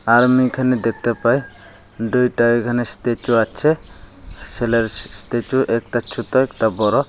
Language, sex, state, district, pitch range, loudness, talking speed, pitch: Bengali, male, Tripura, Unakoti, 105-125 Hz, -18 LUFS, 125 wpm, 115 Hz